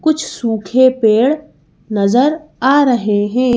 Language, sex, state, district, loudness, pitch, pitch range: Hindi, female, Madhya Pradesh, Bhopal, -14 LUFS, 250 Hz, 220-285 Hz